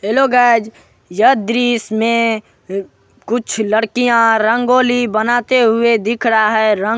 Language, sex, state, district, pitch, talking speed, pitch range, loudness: Hindi, male, Bihar, Supaul, 230 Hz, 120 wpm, 220-245 Hz, -14 LUFS